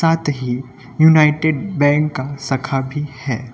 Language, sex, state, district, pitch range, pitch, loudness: Hindi, male, Uttar Pradesh, Lucknow, 130-150 Hz, 140 Hz, -17 LUFS